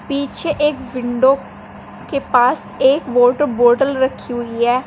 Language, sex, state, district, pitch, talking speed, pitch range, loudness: Hindi, female, Uttar Pradesh, Saharanpur, 260 Hz, 135 wpm, 245-280 Hz, -16 LUFS